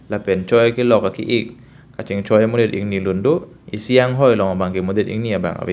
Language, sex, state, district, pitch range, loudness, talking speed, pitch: Karbi, male, Assam, Karbi Anglong, 100-120 Hz, -17 LUFS, 210 wpm, 110 Hz